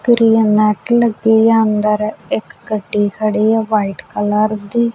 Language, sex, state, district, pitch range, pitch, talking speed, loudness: Punjabi, female, Punjab, Kapurthala, 210-225 Hz, 215 Hz, 95 wpm, -15 LUFS